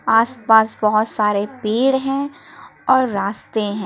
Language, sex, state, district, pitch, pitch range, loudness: Hindi, female, Jharkhand, Palamu, 220 Hz, 210-260 Hz, -18 LUFS